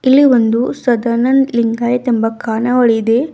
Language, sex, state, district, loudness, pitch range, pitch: Kannada, female, Karnataka, Bidar, -13 LUFS, 230-255 Hz, 240 Hz